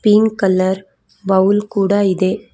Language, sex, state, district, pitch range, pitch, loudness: Kannada, female, Karnataka, Bangalore, 190-205 Hz, 195 Hz, -15 LUFS